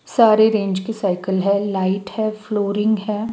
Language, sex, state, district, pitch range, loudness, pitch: Hindi, female, Chhattisgarh, Raipur, 195-215 Hz, -19 LUFS, 210 Hz